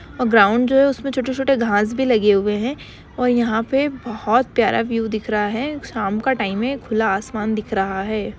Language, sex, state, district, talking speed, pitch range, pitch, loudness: Hindi, female, Maharashtra, Chandrapur, 200 wpm, 210-260 Hz, 230 Hz, -19 LUFS